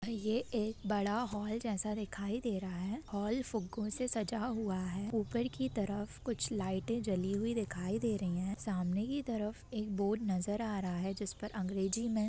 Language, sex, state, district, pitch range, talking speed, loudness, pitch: Hindi, female, Bihar, Gopalganj, 195-225 Hz, 190 wpm, -37 LUFS, 210 Hz